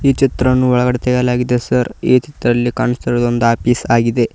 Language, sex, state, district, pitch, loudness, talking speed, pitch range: Kannada, male, Karnataka, Koppal, 125 Hz, -15 LUFS, 150 wpm, 120-125 Hz